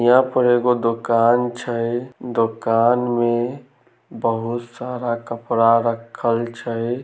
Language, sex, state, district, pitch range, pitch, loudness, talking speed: Maithili, male, Bihar, Samastipur, 115-125 Hz, 120 Hz, -20 LUFS, 100 wpm